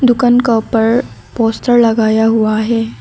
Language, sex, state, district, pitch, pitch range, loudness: Hindi, female, Arunachal Pradesh, Lower Dibang Valley, 225 Hz, 220-240 Hz, -12 LUFS